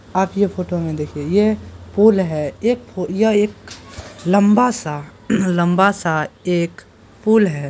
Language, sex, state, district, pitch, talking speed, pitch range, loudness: Hindi, female, Bihar, Purnia, 185 Hz, 150 wpm, 155-210 Hz, -18 LUFS